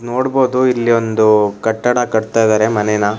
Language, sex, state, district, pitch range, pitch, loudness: Kannada, male, Karnataka, Shimoga, 110-125 Hz, 110 Hz, -14 LUFS